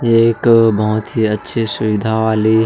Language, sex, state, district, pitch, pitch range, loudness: Hindi, male, Chhattisgarh, Jashpur, 110 Hz, 110-115 Hz, -14 LUFS